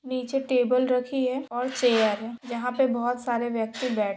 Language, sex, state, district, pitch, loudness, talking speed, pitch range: Hindi, female, Maharashtra, Pune, 250 Hz, -26 LUFS, 185 wpm, 235-255 Hz